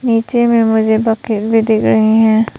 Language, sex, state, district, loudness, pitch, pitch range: Hindi, female, Arunachal Pradesh, Papum Pare, -12 LUFS, 225 Hz, 220-230 Hz